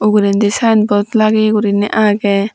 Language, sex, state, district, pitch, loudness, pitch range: Chakma, female, Tripura, Dhalai, 210 Hz, -13 LUFS, 205-215 Hz